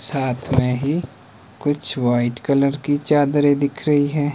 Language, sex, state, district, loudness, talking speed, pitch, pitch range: Hindi, male, Himachal Pradesh, Shimla, -19 LUFS, 150 wpm, 140 Hz, 125-145 Hz